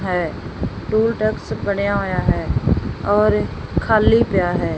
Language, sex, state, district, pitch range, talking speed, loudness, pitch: Punjabi, female, Punjab, Fazilka, 165-210 Hz, 125 wpm, -19 LUFS, 190 Hz